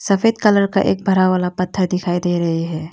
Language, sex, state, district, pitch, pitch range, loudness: Hindi, female, Arunachal Pradesh, Longding, 185 Hz, 175-195 Hz, -17 LUFS